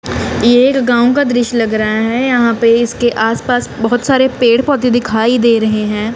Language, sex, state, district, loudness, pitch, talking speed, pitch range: Hindi, female, Punjab, Kapurthala, -12 LUFS, 235 Hz, 185 wpm, 225-245 Hz